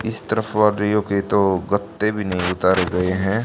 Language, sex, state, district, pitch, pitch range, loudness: Hindi, male, Haryana, Charkhi Dadri, 100 Hz, 95-105 Hz, -20 LUFS